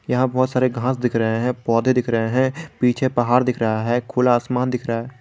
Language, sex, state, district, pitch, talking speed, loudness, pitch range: Hindi, male, Jharkhand, Garhwa, 125 Hz, 230 wpm, -20 LUFS, 120-130 Hz